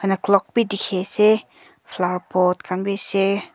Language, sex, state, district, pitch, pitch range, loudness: Nagamese, female, Nagaland, Kohima, 195 Hz, 185-200 Hz, -20 LUFS